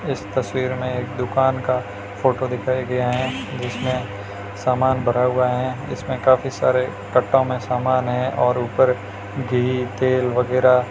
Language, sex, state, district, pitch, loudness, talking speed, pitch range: Hindi, male, Rajasthan, Churu, 125 Hz, -21 LUFS, 155 wpm, 125-130 Hz